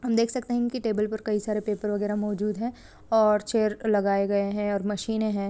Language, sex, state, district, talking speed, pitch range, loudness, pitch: Hindi, female, Uttarakhand, Tehri Garhwal, 230 wpm, 205-225 Hz, -26 LUFS, 210 Hz